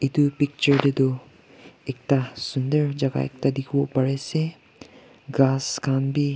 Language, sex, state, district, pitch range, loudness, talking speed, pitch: Nagamese, male, Nagaland, Kohima, 135-145 Hz, -23 LUFS, 140 wpm, 140 Hz